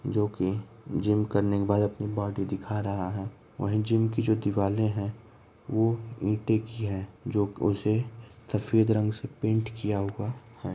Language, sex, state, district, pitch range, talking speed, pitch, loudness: Hindi, male, Uttar Pradesh, Varanasi, 100-115 Hz, 170 wpm, 105 Hz, -29 LUFS